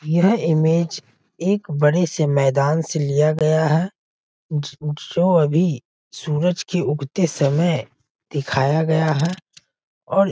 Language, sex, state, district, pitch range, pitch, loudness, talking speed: Hindi, male, Bihar, Sitamarhi, 145-170 Hz, 155 Hz, -20 LUFS, 130 wpm